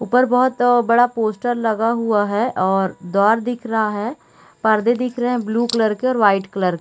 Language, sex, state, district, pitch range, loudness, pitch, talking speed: Hindi, female, Chhattisgarh, Raigarh, 210-245 Hz, -18 LUFS, 225 Hz, 205 wpm